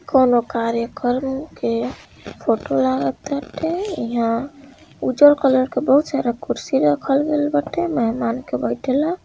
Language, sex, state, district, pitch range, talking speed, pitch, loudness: Hindi, female, Bihar, East Champaran, 230-290 Hz, 130 wpm, 265 Hz, -20 LUFS